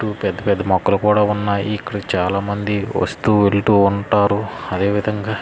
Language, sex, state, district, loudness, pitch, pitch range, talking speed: Telugu, male, Andhra Pradesh, Srikakulam, -18 LUFS, 100 Hz, 100-105 Hz, 145 wpm